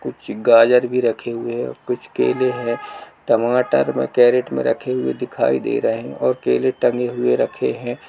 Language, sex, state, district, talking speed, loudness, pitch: Hindi, male, Uttar Pradesh, Jalaun, 195 wpm, -19 LUFS, 120 Hz